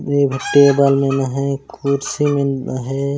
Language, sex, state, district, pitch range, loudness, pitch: Chhattisgarhi, male, Chhattisgarh, Raigarh, 135-140 Hz, -17 LUFS, 140 Hz